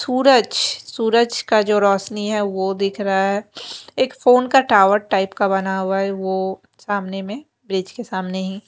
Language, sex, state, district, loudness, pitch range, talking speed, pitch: Hindi, female, Maharashtra, Mumbai Suburban, -18 LUFS, 195-230 Hz, 185 wpm, 200 Hz